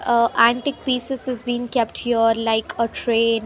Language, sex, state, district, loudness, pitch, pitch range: English, female, Haryana, Rohtak, -20 LUFS, 235 Hz, 230-245 Hz